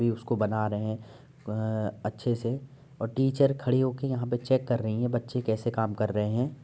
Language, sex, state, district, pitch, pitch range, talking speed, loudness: Hindi, male, Uttar Pradesh, Jyotiba Phule Nagar, 120 Hz, 110-130 Hz, 225 wpm, -29 LUFS